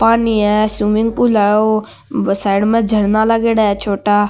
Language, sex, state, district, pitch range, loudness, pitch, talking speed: Marwari, male, Rajasthan, Nagaur, 205-225 Hz, -14 LUFS, 215 Hz, 165 wpm